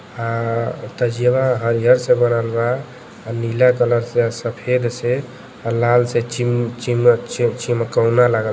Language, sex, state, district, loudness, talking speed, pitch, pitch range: Bhojpuri, male, Uttar Pradesh, Deoria, -18 LUFS, 140 wpm, 120 Hz, 115-125 Hz